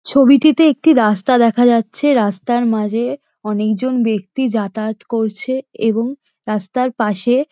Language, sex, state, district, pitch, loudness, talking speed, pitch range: Bengali, female, West Bengal, Dakshin Dinajpur, 235 Hz, -16 LUFS, 110 wpm, 215-260 Hz